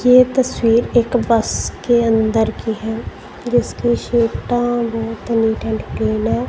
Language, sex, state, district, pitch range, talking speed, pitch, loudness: Hindi, female, Punjab, Kapurthala, 220-240 Hz, 140 wpm, 230 Hz, -17 LUFS